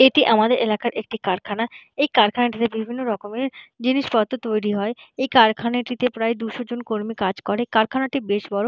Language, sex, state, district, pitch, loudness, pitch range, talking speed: Bengali, female, West Bengal, Purulia, 230 Hz, -21 LUFS, 215-245 Hz, 160 wpm